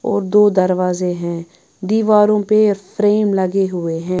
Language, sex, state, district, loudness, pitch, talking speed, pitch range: Hindi, female, Bihar, Patna, -16 LUFS, 195 Hz, 145 wpm, 180-210 Hz